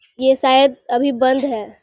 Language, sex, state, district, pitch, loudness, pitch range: Hindi, female, Bihar, Muzaffarpur, 265 Hz, -16 LUFS, 260-275 Hz